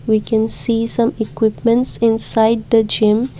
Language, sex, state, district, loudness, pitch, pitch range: English, female, Assam, Kamrup Metropolitan, -15 LUFS, 225 Hz, 220-230 Hz